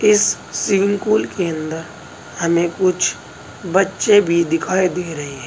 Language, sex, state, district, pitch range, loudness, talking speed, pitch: Hindi, male, Uttar Pradesh, Saharanpur, 155-195 Hz, -17 LUFS, 145 wpm, 170 Hz